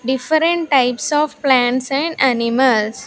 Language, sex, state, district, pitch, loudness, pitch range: English, female, Andhra Pradesh, Sri Satya Sai, 265 Hz, -16 LUFS, 250-300 Hz